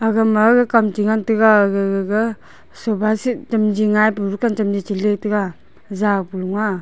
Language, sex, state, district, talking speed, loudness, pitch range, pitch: Wancho, female, Arunachal Pradesh, Longding, 200 wpm, -17 LUFS, 200-220 Hz, 215 Hz